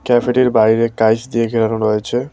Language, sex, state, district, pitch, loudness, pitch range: Bengali, male, West Bengal, Cooch Behar, 115 Hz, -15 LUFS, 110-120 Hz